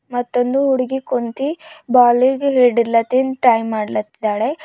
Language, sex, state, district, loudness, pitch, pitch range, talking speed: Kannada, female, Karnataka, Bidar, -17 LUFS, 250 Hz, 235-270 Hz, 90 wpm